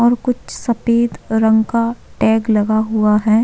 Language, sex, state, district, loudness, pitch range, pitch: Hindi, female, Uttarakhand, Tehri Garhwal, -16 LUFS, 220-235 Hz, 225 Hz